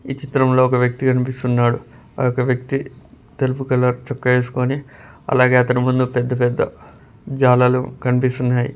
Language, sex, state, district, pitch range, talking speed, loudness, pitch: Telugu, male, Telangana, Mahabubabad, 125-130 Hz, 130 wpm, -18 LUFS, 125 Hz